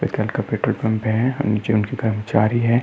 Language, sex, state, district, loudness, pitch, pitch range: Hindi, male, Uttar Pradesh, Muzaffarnagar, -20 LUFS, 110 Hz, 110-120 Hz